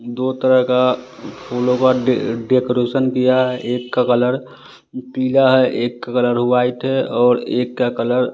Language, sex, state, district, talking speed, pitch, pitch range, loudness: Hindi, male, Bihar, West Champaran, 170 wpm, 125 Hz, 125-130 Hz, -17 LUFS